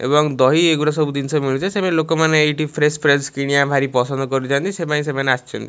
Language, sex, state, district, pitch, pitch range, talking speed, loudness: Odia, male, Odisha, Malkangiri, 150 Hz, 135-155 Hz, 190 wpm, -17 LUFS